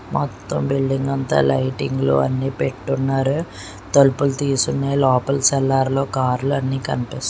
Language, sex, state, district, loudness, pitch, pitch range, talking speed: Telugu, male, Andhra Pradesh, Srikakulam, -19 LUFS, 135 Hz, 125-135 Hz, 115 wpm